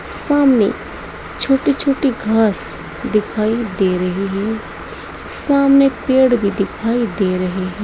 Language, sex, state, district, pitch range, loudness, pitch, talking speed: Hindi, female, Uttar Pradesh, Saharanpur, 200-270 Hz, -16 LUFS, 220 Hz, 115 wpm